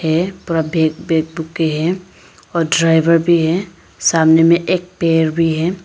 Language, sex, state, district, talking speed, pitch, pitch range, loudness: Hindi, female, Arunachal Pradesh, Papum Pare, 135 wpm, 165 Hz, 160-170 Hz, -15 LUFS